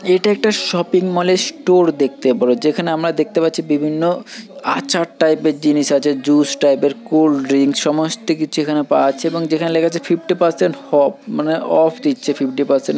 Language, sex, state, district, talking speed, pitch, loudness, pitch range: Bengali, male, West Bengal, Purulia, 195 wpm, 160 Hz, -16 LUFS, 145-170 Hz